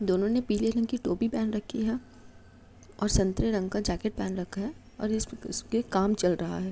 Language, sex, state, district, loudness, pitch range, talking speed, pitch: Hindi, female, Uttar Pradesh, Jalaun, -29 LUFS, 190-225 Hz, 215 wpm, 210 Hz